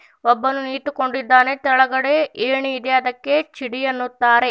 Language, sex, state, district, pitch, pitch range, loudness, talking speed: Kannada, female, Karnataka, Bidar, 260 Hz, 255-270 Hz, -18 LUFS, 105 wpm